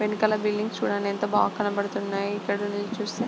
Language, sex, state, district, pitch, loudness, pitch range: Telugu, female, Andhra Pradesh, Guntur, 205 Hz, -26 LUFS, 200-210 Hz